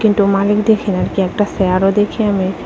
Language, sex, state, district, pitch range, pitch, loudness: Bengali, female, Tripura, West Tripura, 190-210 Hz, 200 Hz, -15 LUFS